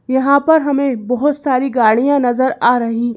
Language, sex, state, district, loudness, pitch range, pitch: Hindi, female, Madhya Pradesh, Bhopal, -14 LUFS, 245-280 Hz, 260 Hz